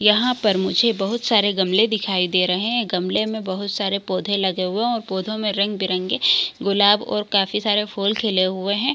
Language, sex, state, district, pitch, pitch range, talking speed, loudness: Hindi, female, Chhattisgarh, Bilaspur, 205 Hz, 190-220 Hz, 210 wpm, -20 LUFS